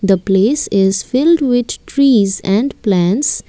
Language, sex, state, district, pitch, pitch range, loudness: English, female, Assam, Kamrup Metropolitan, 210 Hz, 195-270 Hz, -14 LUFS